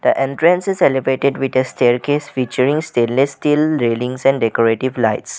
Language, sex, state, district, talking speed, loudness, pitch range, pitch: English, male, Assam, Sonitpur, 155 wpm, -16 LUFS, 125-145 Hz, 130 Hz